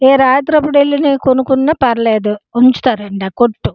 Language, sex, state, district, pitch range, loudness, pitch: Telugu, female, Andhra Pradesh, Srikakulam, 230-280 Hz, -12 LUFS, 260 Hz